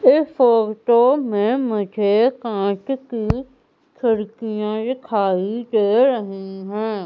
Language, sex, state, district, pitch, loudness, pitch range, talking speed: Hindi, female, Madhya Pradesh, Umaria, 220 Hz, -19 LUFS, 210-250 Hz, 95 wpm